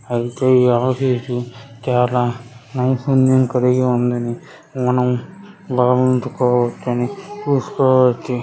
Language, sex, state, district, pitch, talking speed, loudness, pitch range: Telugu, male, Telangana, Karimnagar, 125 Hz, 65 wpm, -17 LUFS, 120-130 Hz